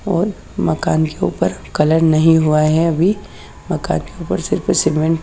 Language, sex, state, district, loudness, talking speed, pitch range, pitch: Hindi, female, Haryana, Charkhi Dadri, -16 LUFS, 170 wpm, 155-165 Hz, 160 Hz